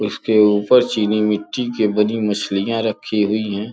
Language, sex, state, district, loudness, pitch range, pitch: Hindi, male, Uttar Pradesh, Gorakhpur, -18 LUFS, 105-110 Hz, 105 Hz